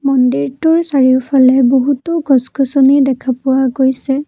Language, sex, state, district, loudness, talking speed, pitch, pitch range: Assamese, female, Assam, Kamrup Metropolitan, -12 LUFS, 110 wpm, 265 Hz, 255-280 Hz